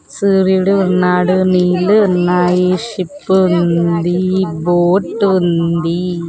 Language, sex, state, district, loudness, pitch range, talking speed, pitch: Telugu, female, Andhra Pradesh, Sri Satya Sai, -13 LUFS, 175-190 Hz, 75 wpm, 180 Hz